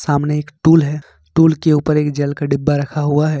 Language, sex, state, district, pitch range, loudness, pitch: Hindi, male, Jharkhand, Ranchi, 145-155 Hz, -16 LUFS, 150 Hz